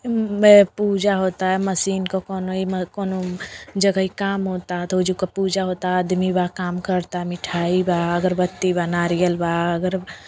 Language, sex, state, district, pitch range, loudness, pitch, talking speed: Bhojpuri, female, Uttar Pradesh, Gorakhpur, 180-190 Hz, -20 LUFS, 185 Hz, 165 wpm